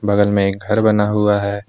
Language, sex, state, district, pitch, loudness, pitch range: Hindi, male, Jharkhand, Deoghar, 105 Hz, -16 LUFS, 100-105 Hz